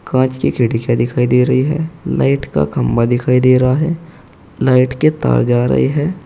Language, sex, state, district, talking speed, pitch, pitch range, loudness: Hindi, male, Uttar Pradesh, Saharanpur, 190 wpm, 130 Hz, 120-145 Hz, -14 LUFS